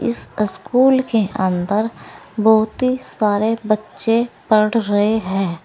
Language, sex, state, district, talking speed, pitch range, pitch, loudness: Hindi, female, Uttar Pradesh, Saharanpur, 105 wpm, 205-230 Hz, 215 Hz, -18 LUFS